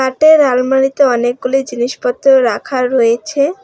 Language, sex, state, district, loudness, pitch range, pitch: Bengali, female, West Bengal, Alipurduar, -13 LUFS, 245-275 Hz, 260 Hz